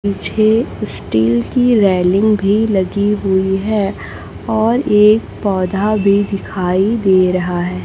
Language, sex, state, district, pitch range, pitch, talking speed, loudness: Hindi, female, Chhattisgarh, Raipur, 185-215 Hz, 200 Hz, 115 wpm, -14 LUFS